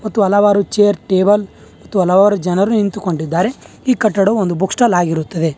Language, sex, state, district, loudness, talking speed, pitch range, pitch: Kannada, male, Karnataka, Bangalore, -14 LUFS, 150 wpm, 180-205 Hz, 200 Hz